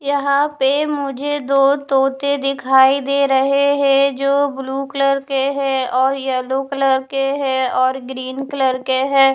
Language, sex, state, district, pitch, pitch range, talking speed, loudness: Hindi, female, Punjab, Fazilka, 275 Hz, 265-280 Hz, 155 wpm, -17 LUFS